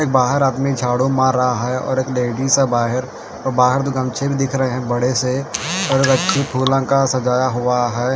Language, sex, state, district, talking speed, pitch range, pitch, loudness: Hindi, male, Haryana, Charkhi Dadri, 200 wpm, 125-135 Hz, 130 Hz, -17 LUFS